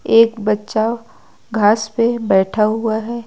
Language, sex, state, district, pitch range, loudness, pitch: Hindi, female, Uttar Pradesh, Lucknow, 215-230 Hz, -16 LUFS, 220 Hz